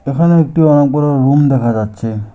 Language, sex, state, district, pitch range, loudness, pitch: Bengali, male, West Bengal, Alipurduar, 115-150 Hz, -12 LUFS, 140 Hz